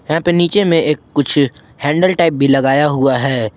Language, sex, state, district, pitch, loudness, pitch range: Hindi, male, Jharkhand, Ranchi, 145 Hz, -14 LUFS, 135-165 Hz